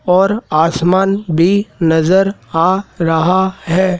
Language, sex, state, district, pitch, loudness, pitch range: Hindi, male, Madhya Pradesh, Dhar, 185 Hz, -14 LUFS, 165-195 Hz